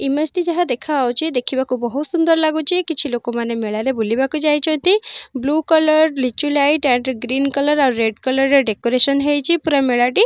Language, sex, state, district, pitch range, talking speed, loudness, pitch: Odia, female, Odisha, Nuapada, 250-315 Hz, 180 wpm, -17 LUFS, 280 Hz